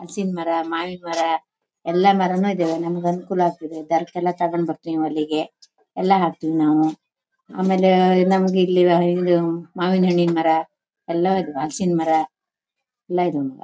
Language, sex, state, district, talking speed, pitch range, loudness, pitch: Kannada, female, Karnataka, Shimoga, 110 wpm, 165-185 Hz, -20 LUFS, 175 Hz